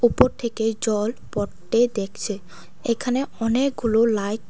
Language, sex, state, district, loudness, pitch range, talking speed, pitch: Bengali, female, Tripura, West Tripura, -23 LUFS, 205-235 Hz, 120 wpm, 225 Hz